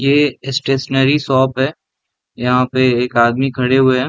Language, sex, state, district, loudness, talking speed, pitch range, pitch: Hindi, male, Chhattisgarh, Raigarh, -15 LUFS, 160 wpm, 125-135 Hz, 130 Hz